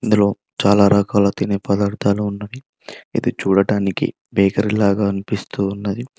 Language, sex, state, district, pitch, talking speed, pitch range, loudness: Telugu, male, Telangana, Mahabubabad, 100 Hz, 115 wpm, 100-105 Hz, -18 LUFS